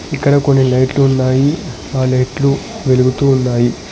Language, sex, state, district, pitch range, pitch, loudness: Telugu, male, Telangana, Hyderabad, 130-140 Hz, 130 Hz, -14 LUFS